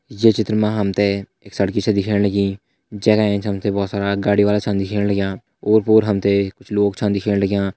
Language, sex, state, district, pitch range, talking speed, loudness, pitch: Hindi, male, Uttarakhand, Tehri Garhwal, 100-105 Hz, 215 wpm, -18 LUFS, 100 Hz